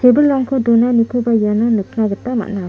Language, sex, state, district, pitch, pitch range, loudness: Garo, female, Meghalaya, South Garo Hills, 235 Hz, 215-250 Hz, -15 LUFS